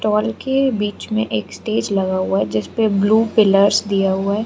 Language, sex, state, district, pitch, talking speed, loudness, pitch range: Hindi, female, Arunachal Pradesh, Lower Dibang Valley, 205 Hz, 200 wpm, -18 LUFS, 190-220 Hz